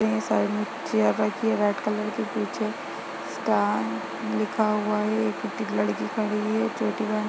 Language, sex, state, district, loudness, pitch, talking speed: Hindi, female, Chhattisgarh, Sarguja, -26 LUFS, 205 Hz, 175 wpm